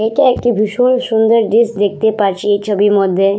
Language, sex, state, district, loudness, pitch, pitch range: Bengali, female, West Bengal, Purulia, -13 LUFS, 215 Hz, 205-230 Hz